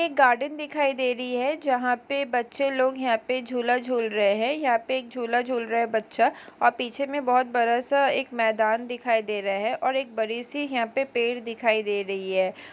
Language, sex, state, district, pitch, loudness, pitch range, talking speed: Hindi, female, Chhattisgarh, Kabirdham, 245 Hz, -25 LUFS, 230-265 Hz, 220 wpm